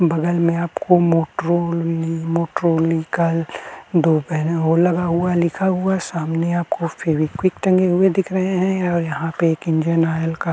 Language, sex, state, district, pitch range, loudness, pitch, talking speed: Hindi, male, Uttar Pradesh, Jalaun, 165-175 Hz, -19 LUFS, 170 Hz, 165 wpm